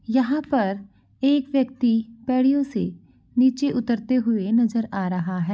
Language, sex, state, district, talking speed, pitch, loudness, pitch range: Hindi, female, Bihar, Begusarai, 140 wpm, 235 Hz, -22 LUFS, 200-260 Hz